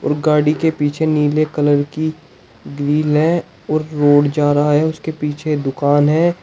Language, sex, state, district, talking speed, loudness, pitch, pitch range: Hindi, male, Uttar Pradesh, Shamli, 160 wpm, -16 LUFS, 150 Hz, 145-155 Hz